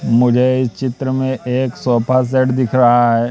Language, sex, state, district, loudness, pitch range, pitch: Hindi, male, Madhya Pradesh, Katni, -15 LUFS, 120-130 Hz, 125 Hz